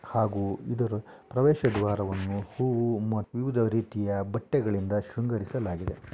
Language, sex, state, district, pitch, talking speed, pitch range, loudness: Kannada, male, Karnataka, Shimoga, 110 Hz, 90 wpm, 100-120 Hz, -29 LUFS